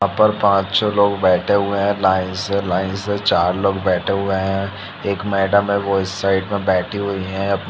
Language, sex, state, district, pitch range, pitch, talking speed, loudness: Hindi, male, Bihar, Purnia, 95-100 Hz, 100 Hz, 220 wpm, -18 LUFS